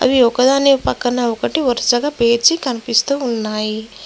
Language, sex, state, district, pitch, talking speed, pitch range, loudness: Telugu, female, Telangana, Mahabubabad, 245 Hz, 120 wpm, 230-265 Hz, -16 LUFS